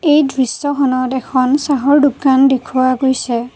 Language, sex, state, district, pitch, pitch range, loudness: Assamese, female, Assam, Kamrup Metropolitan, 265 Hz, 255-285 Hz, -14 LUFS